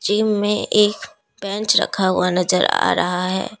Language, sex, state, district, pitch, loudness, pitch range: Hindi, female, Assam, Kamrup Metropolitan, 200 Hz, -18 LUFS, 185-210 Hz